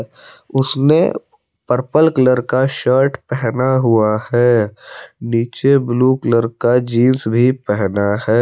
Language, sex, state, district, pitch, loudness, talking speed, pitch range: Hindi, male, Jharkhand, Palamu, 125 Hz, -15 LUFS, 115 wpm, 115-130 Hz